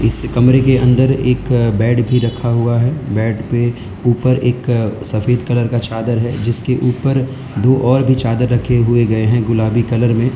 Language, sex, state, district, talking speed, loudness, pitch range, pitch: Hindi, male, Gujarat, Valsad, 185 wpm, -15 LUFS, 115-125 Hz, 120 Hz